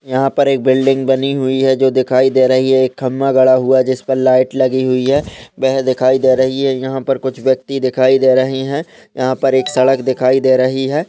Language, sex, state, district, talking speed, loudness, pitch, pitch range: Hindi, male, Uttarakhand, Tehri Garhwal, 240 wpm, -14 LUFS, 130 Hz, 130-135 Hz